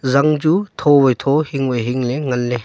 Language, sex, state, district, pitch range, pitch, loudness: Wancho, male, Arunachal Pradesh, Longding, 125-150 Hz, 135 Hz, -16 LUFS